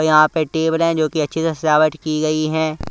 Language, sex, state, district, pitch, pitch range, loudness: Hindi, male, Punjab, Kapurthala, 155 Hz, 155-160 Hz, -18 LUFS